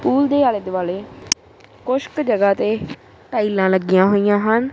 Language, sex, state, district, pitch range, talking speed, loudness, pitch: Punjabi, male, Punjab, Kapurthala, 190-250 Hz, 140 wpm, -18 LUFS, 205 Hz